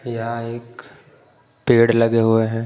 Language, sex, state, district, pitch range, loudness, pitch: Hindi, male, Punjab, Pathankot, 115-120 Hz, -18 LUFS, 115 Hz